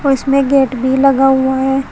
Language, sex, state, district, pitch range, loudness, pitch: Hindi, female, Uttar Pradesh, Shamli, 265-275 Hz, -12 LUFS, 270 Hz